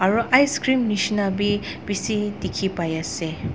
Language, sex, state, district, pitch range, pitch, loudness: Nagamese, female, Nagaland, Dimapur, 190-225 Hz, 205 Hz, -22 LUFS